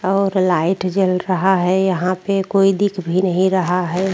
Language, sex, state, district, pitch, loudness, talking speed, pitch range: Hindi, female, Uttarakhand, Tehri Garhwal, 185 Hz, -17 LUFS, 190 wpm, 185-195 Hz